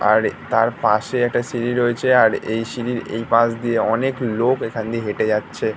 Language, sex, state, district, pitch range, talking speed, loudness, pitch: Bengali, male, West Bengal, North 24 Parganas, 110-120 Hz, 185 wpm, -19 LUFS, 115 Hz